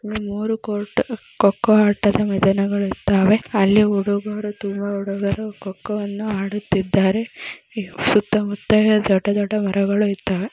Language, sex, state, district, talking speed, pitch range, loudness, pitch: Kannada, female, Karnataka, Belgaum, 100 wpm, 200-210 Hz, -19 LUFS, 205 Hz